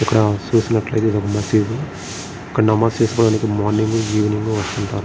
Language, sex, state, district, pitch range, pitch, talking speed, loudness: Telugu, male, Andhra Pradesh, Srikakulam, 105-110 Hz, 110 Hz, 155 wpm, -18 LUFS